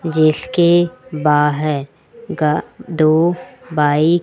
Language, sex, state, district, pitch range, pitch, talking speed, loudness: Hindi, female, Rajasthan, Jaipur, 150-175 Hz, 160 Hz, 85 wpm, -16 LUFS